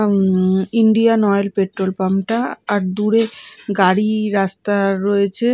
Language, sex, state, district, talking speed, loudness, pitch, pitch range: Bengali, female, Odisha, Malkangiri, 120 wpm, -17 LUFS, 200 Hz, 195-215 Hz